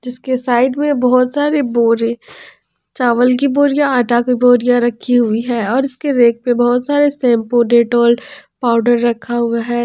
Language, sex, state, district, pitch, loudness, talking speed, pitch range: Hindi, female, Jharkhand, Ranchi, 245 Hz, -14 LUFS, 165 wpm, 240-260 Hz